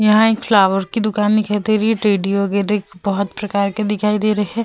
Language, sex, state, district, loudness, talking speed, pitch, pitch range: Hindi, female, Uttar Pradesh, Budaun, -17 LUFS, 230 wpm, 210 Hz, 200-215 Hz